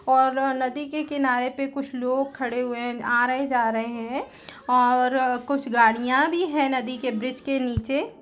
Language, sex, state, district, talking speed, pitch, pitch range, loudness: Hindi, female, Chhattisgarh, Raigarh, 180 wpm, 255 Hz, 245-275 Hz, -24 LUFS